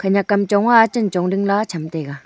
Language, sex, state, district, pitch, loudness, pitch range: Wancho, female, Arunachal Pradesh, Longding, 200 Hz, -17 LUFS, 180-205 Hz